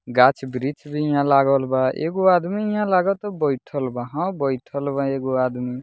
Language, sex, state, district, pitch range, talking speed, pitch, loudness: Bhojpuri, male, Bihar, Muzaffarpur, 130-170 Hz, 175 wpm, 140 Hz, -21 LUFS